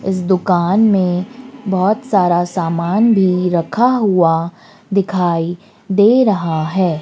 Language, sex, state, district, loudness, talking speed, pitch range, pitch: Hindi, female, Madhya Pradesh, Dhar, -15 LUFS, 110 wpm, 175-210 Hz, 190 Hz